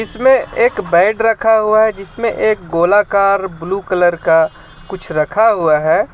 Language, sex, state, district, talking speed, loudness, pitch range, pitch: Hindi, male, Jharkhand, Ranchi, 155 wpm, -14 LUFS, 170-220 Hz, 195 Hz